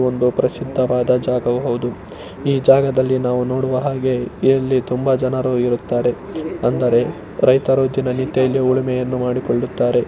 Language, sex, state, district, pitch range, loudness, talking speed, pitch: Kannada, male, Karnataka, Shimoga, 125-130 Hz, -18 LUFS, 105 wpm, 130 Hz